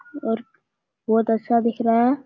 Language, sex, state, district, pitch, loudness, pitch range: Hindi, male, Bihar, Jamui, 235 Hz, -21 LUFS, 225-255 Hz